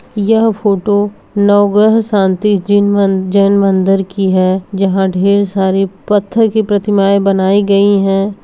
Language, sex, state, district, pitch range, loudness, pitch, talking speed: Hindi, female, Bihar, Jahanabad, 195-205 Hz, -12 LUFS, 200 Hz, 135 wpm